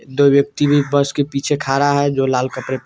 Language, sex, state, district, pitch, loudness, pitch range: Bajjika, male, Bihar, Vaishali, 140 Hz, -16 LUFS, 135-145 Hz